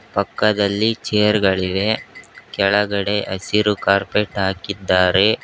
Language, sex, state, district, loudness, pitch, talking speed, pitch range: Kannada, male, Karnataka, Koppal, -18 LUFS, 100 Hz, 75 wpm, 95-105 Hz